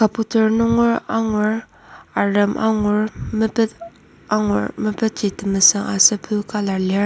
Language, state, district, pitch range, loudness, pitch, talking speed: Ao, Nagaland, Kohima, 205-225 Hz, -18 LUFS, 215 Hz, 100 wpm